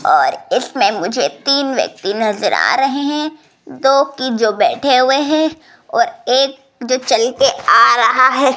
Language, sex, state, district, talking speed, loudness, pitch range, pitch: Hindi, female, Rajasthan, Jaipur, 155 wpm, -14 LUFS, 255-285 Hz, 270 Hz